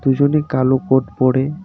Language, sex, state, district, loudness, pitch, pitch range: Bengali, male, West Bengal, Darjeeling, -16 LUFS, 135 Hz, 130-145 Hz